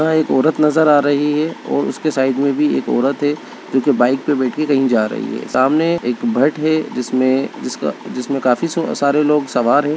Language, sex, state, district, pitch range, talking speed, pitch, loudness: Hindi, male, Bihar, Begusarai, 130-155 Hz, 210 wpm, 145 Hz, -16 LUFS